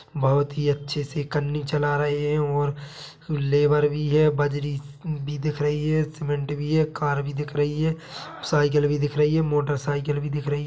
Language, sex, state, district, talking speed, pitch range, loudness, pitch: Hindi, male, Chhattisgarh, Bilaspur, 195 wpm, 145-150 Hz, -24 LUFS, 145 Hz